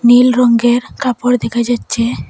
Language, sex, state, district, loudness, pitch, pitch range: Bengali, female, Assam, Hailakandi, -13 LUFS, 240 Hz, 235-245 Hz